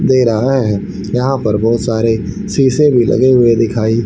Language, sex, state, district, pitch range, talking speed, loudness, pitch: Hindi, male, Haryana, Rohtak, 110-130 Hz, 175 wpm, -13 LUFS, 115 Hz